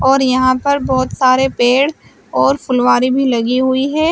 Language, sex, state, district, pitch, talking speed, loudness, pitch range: Hindi, female, Uttar Pradesh, Shamli, 260 Hz, 175 wpm, -14 LUFS, 255-270 Hz